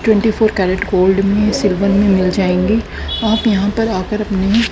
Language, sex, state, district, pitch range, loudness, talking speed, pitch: Hindi, female, Haryana, Charkhi Dadri, 190-220 Hz, -15 LUFS, 190 wpm, 205 Hz